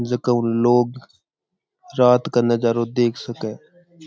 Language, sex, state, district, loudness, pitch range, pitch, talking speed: Rajasthani, male, Rajasthan, Churu, -19 LUFS, 120-130 Hz, 120 Hz, 120 wpm